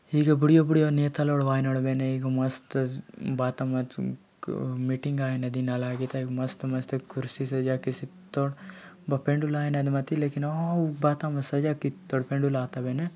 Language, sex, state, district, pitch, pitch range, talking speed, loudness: Halbi, male, Chhattisgarh, Bastar, 135 Hz, 130-150 Hz, 150 wpm, -28 LUFS